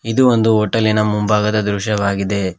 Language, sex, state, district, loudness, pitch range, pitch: Kannada, male, Karnataka, Koppal, -16 LUFS, 100-110 Hz, 105 Hz